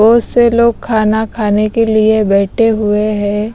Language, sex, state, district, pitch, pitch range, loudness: Hindi, female, Bihar, West Champaran, 220 Hz, 210-230 Hz, -12 LUFS